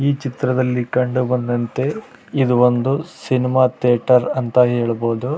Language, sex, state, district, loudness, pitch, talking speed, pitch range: Kannada, male, Karnataka, Raichur, -18 LUFS, 125 Hz, 110 wpm, 125-135 Hz